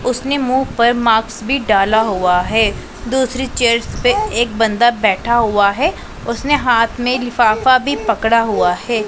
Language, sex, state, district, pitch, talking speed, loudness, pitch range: Hindi, female, Punjab, Pathankot, 235 Hz, 160 wpm, -15 LUFS, 220-255 Hz